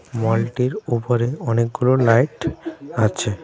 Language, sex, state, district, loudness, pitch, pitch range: Bengali, male, Tripura, West Tripura, -20 LUFS, 120 Hz, 115-130 Hz